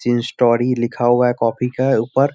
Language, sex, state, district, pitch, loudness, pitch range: Hindi, male, Bihar, Sitamarhi, 120 Hz, -17 LUFS, 120-125 Hz